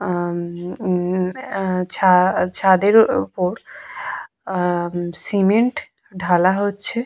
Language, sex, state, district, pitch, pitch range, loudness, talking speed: Bengali, female, West Bengal, Purulia, 185 Hz, 180-200 Hz, -19 LUFS, 85 wpm